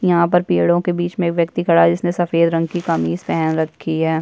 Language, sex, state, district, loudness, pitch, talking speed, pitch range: Hindi, female, Chhattisgarh, Bastar, -17 LUFS, 165 Hz, 255 wpm, 160-175 Hz